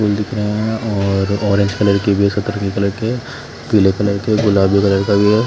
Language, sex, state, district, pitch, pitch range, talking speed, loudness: Hindi, male, Punjab, Fazilka, 105 Hz, 100-105 Hz, 230 wpm, -16 LUFS